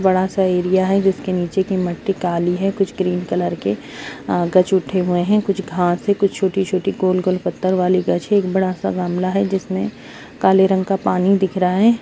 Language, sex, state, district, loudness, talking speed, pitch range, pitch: Hindi, female, Bihar, Kishanganj, -18 LUFS, 200 wpm, 180-195 Hz, 190 Hz